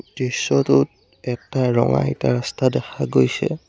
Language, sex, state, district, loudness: Assamese, male, Assam, Sonitpur, -20 LUFS